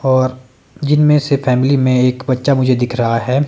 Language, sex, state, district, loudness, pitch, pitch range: Hindi, male, Himachal Pradesh, Shimla, -14 LUFS, 130 Hz, 125-140 Hz